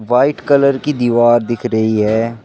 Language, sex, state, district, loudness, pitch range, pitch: Hindi, male, Uttar Pradesh, Shamli, -14 LUFS, 110-130 Hz, 120 Hz